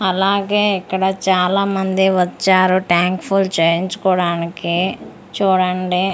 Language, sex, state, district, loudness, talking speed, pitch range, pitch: Telugu, female, Andhra Pradesh, Manyam, -16 LUFS, 80 wpm, 180-195 Hz, 185 Hz